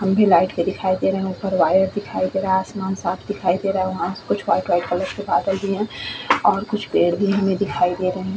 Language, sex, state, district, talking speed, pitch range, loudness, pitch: Hindi, female, Goa, North and South Goa, 260 wpm, 180-195 Hz, -20 LUFS, 190 Hz